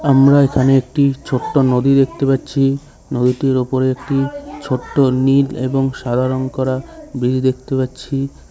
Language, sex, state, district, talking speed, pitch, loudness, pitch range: Bengali, male, West Bengal, North 24 Parganas, 135 wpm, 135 Hz, -16 LUFS, 130-140 Hz